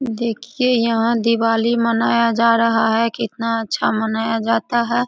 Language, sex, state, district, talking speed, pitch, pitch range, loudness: Hindi, female, Bihar, Samastipur, 140 wpm, 230 Hz, 225-235 Hz, -18 LUFS